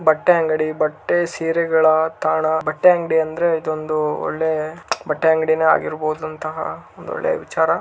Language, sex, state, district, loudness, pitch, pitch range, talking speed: Kannada, male, Karnataka, Raichur, -19 LUFS, 160 Hz, 155-165 Hz, 125 wpm